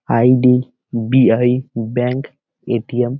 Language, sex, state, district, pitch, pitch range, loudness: Bengali, male, West Bengal, Malda, 125 Hz, 120-130 Hz, -16 LUFS